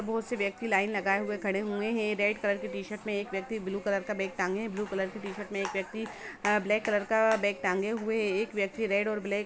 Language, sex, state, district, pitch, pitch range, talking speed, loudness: Hindi, female, Jharkhand, Jamtara, 205 Hz, 195-215 Hz, 265 wpm, -30 LUFS